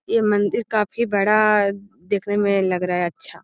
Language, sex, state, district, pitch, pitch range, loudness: Magahi, female, Bihar, Gaya, 205 Hz, 195-215 Hz, -20 LUFS